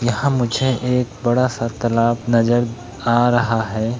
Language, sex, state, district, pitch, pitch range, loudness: Hindi, male, Bihar, Begusarai, 120 Hz, 115-125 Hz, -18 LUFS